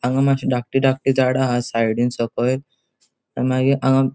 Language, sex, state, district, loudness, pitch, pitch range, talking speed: Konkani, male, Goa, North and South Goa, -19 LUFS, 130 Hz, 120-135 Hz, 175 wpm